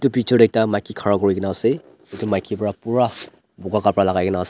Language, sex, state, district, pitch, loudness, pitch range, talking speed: Nagamese, male, Nagaland, Dimapur, 100 Hz, -20 LUFS, 95-115 Hz, 240 wpm